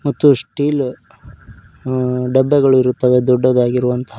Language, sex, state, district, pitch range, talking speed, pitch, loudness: Kannada, male, Karnataka, Koppal, 125-135 Hz, 70 wpm, 125 Hz, -15 LUFS